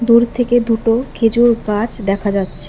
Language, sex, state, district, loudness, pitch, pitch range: Bengali, female, West Bengal, Alipurduar, -15 LUFS, 230 Hz, 210-235 Hz